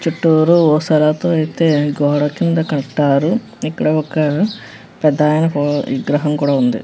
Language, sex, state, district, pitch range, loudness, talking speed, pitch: Telugu, female, Andhra Pradesh, Krishna, 145-160 Hz, -15 LUFS, 105 wpm, 150 Hz